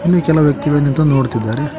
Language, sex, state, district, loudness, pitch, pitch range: Kannada, male, Karnataka, Koppal, -14 LUFS, 150 Hz, 140-155 Hz